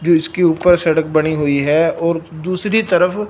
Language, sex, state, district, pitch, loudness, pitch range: Hindi, male, Punjab, Fazilka, 165 Hz, -15 LUFS, 160-180 Hz